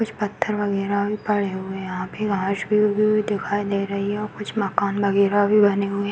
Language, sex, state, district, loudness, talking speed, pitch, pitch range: Hindi, female, Uttar Pradesh, Varanasi, -22 LUFS, 235 wpm, 205 Hz, 200-210 Hz